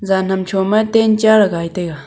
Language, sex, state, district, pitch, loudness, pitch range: Wancho, female, Arunachal Pradesh, Longding, 195 Hz, -14 LUFS, 185-215 Hz